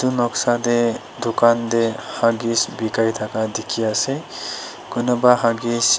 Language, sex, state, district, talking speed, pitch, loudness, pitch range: Nagamese, female, Nagaland, Dimapur, 130 wpm, 115 Hz, -20 LUFS, 115-120 Hz